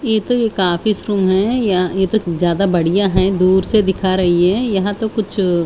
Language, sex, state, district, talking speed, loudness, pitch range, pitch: Hindi, female, Haryana, Charkhi Dadri, 210 wpm, -15 LUFS, 185-215 Hz, 190 Hz